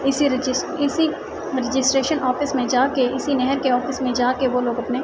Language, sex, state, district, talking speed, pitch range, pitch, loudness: Urdu, female, Andhra Pradesh, Anantapur, 190 wpm, 255-285 Hz, 265 Hz, -21 LUFS